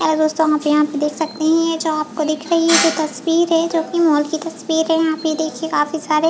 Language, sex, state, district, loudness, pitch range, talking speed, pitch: Hindi, female, Chhattisgarh, Bilaspur, -17 LUFS, 310-330 Hz, 285 wpm, 315 Hz